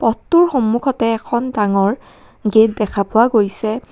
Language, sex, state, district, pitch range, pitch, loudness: Assamese, female, Assam, Kamrup Metropolitan, 215-240 Hz, 225 Hz, -16 LUFS